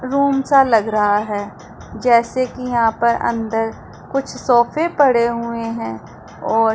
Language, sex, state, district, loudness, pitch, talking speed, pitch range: Hindi, female, Punjab, Pathankot, -17 LUFS, 235 Hz, 140 wpm, 220-255 Hz